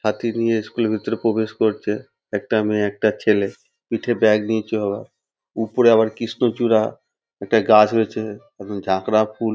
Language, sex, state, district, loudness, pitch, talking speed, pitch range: Bengali, male, West Bengal, North 24 Parganas, -20 LUFS, 110 Hz, 155 wpm, 105-115 Hz